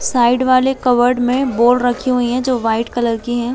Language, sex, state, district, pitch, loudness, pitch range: Hindi, female, Chhattisgarh, Bilaspur, 245 Hz, -15 LUFS, 240-255 Hz